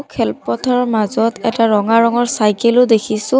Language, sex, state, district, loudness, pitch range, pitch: Assamese, female, Assam, Sonitpur, -15 LUFS, 215-240 Hz, 230 Hz